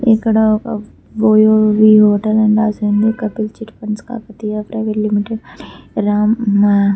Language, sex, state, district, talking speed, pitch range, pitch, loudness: Telugu, female, Telangana, Karimnagar, 145 wpm, 210-220 Hz, 215 Hz, -14 LUFS